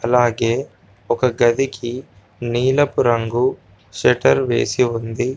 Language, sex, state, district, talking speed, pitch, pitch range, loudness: Telugu, male, Telangana, Komaram Bheem, 90 wpm, 120 Hz, 115-125 Hz, -18 LUFS